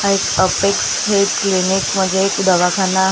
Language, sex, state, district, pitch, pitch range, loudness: Marathi, female, Maharashtra, Gondia, 195 Hz, 190-200 Hz, -15 LUFS